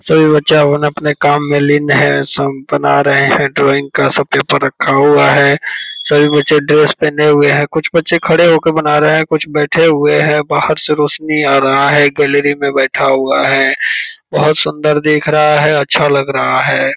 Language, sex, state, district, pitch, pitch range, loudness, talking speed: Hindi, male, Bihar, Purnia, 145 Hz, 140-150 Hz, -11 LUFS, 200 wpm